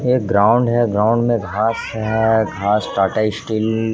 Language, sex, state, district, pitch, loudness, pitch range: Hindi, male, Jharkhand, Jamtara, 110 Hz, -17 LUFS, 105-115 Hz